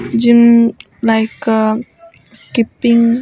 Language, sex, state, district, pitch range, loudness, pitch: Telugu, female, Andhra Pradesh, Srikakulam, 225-235 Hz, -13 LUFS, 230 Hz